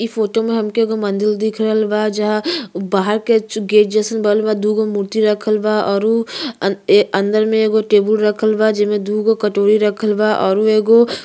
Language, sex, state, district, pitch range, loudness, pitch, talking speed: Bhojpuri, female, Uttar Pradesh, Ghazipur, 210-220 Hz, -15 LUFS, 215 Hz, 195 wpm